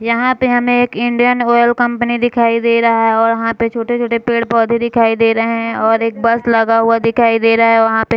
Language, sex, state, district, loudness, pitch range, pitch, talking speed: Hindi, female, Bihar, Sitamarhi, -13 LUFS, 230-240 Hz, 230 Hz, 225 wpm